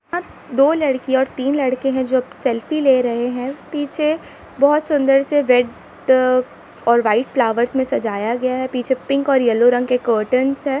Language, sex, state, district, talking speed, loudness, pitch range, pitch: Hindi, female, Jharkhand, Sahebganj, 155 wpm, -18 LUFS, 245-275 Hz, 260 Hz